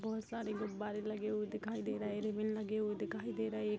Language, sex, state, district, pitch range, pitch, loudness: Hindi, female, Bihar, Darbhanga, 210-215 Hz, 210 Hz, -40 LUFS